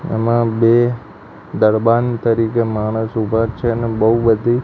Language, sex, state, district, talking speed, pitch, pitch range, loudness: Gujarati, male, Gujarat, Gandhinagar, 130 wpm, 115 Hz, 110-120 Hz, -16 LUFS